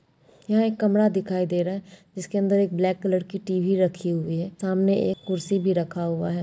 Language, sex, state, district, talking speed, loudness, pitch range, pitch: Hindi, female, Maharashtra, Dhule, 225 wpm, -24 LUFS, 175-195 Hz, 185 Hz